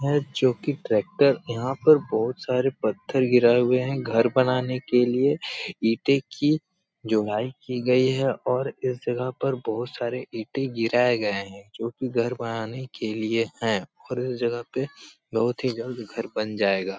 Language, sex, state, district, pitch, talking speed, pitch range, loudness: Hindi, male, Bihar, Supaul, 125 Hz, 165 wpm, 115-130 Hz, -25 LUFS